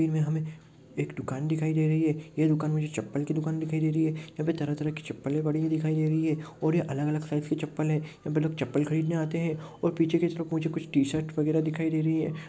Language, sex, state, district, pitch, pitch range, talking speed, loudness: Hindi, male, Rajasthan, Churu, 155 Hz, 150-160 Hz, 275 wpm, -29 LUFS